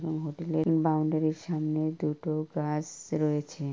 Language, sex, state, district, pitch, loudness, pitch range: Bengali, male, West Bengal, Purulia, 155 Hz, -30 LUFS, 150-160 Hz